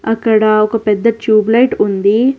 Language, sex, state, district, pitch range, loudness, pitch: Telugu, female, Telangana, Hyderabad, 215-230 Hz, -12 LUFS, 220 Hz